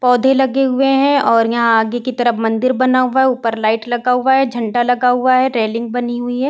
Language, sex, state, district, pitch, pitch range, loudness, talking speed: Hindi, female, Uttar Pradesh, Varanasi, 245 Hz, 235-260 Hz, -15 LUFS, 240 wpm